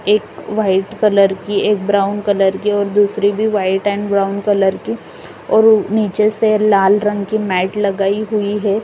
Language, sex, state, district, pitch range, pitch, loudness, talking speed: Hindi, female, Uttar Pradesh, Lalitpur, 195-210 Hz, 205 Hz, -15 LUFS, 175 wpm